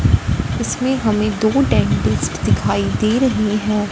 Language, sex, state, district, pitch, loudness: Hindi, female, Punjab, Fazilka, 210 Hz, -17 LUFS